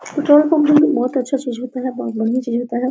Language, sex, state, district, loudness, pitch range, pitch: Hindi, female, Bihar, Araria, -17 LUFS, 245-295 Hz, 255 Hz